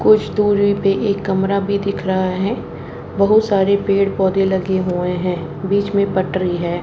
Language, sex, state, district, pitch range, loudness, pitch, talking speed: Hindi, male, Haryana, Jhajjar, 185-200 Hz, -17 LUFS, 195 Hz, 175 wpm